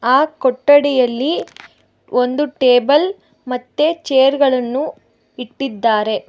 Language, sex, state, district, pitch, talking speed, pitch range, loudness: Kannada, female, Karnataka, Bangalore, 265 Hz, 75 wpm, 250-290 Hz, -16 LUFS